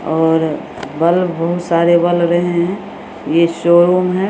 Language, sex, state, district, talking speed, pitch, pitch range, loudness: Maithili, female, Bihar, Samastipur, 155 wpm, 170 Hz, 165-175 Hz, -14 LUFS